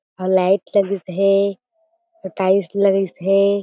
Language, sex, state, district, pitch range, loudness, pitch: Chhattisgarhi, female, Chhattisgarh, Jashpur, 190-200 Hz, -18 LUFS, 195 Hz